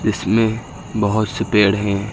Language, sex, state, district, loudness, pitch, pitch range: Hindi, male, Uttar Pradesh, Lucknow, -18 LUFS, 110 Hz, 100-110 Hz